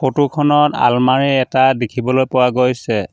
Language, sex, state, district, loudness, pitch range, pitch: Assamese, male, Assam, Sonitpur, -15 LUFS, 125-135 Hz, 130 Hz